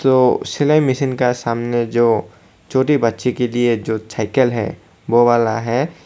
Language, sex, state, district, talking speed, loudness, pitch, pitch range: Hindi, male, Tripura, Dhalai, 160 wpm, -17 LUFS, 120 Hz, 115-130 Hz